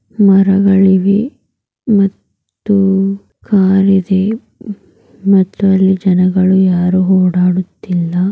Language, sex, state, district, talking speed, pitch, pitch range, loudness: Kannada, female, Karnataka, Mysore, 65 wpm, 195 Hz, 185-200 Hz, -12 LUFS